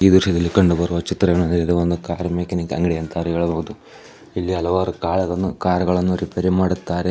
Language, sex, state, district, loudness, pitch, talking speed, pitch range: Kannada, male, Karnataka, Chamarajanagar, -20 LUFS, 90 Hz, 160 wpm, 85-90 Hz